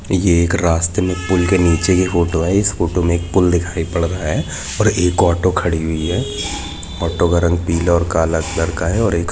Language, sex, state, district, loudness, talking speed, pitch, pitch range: Hindi, male, Jharkhand, Jamtara, -17 LUFS, 220 wpm, 85 Hz, 85-90 Hz